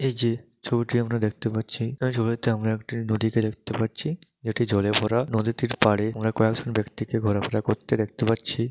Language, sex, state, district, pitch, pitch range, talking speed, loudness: Bengali, male, West Bengal, Dakshin Dinajpur, 115 Hz, 110-120 Hz, 165 wpm, -25 LUFS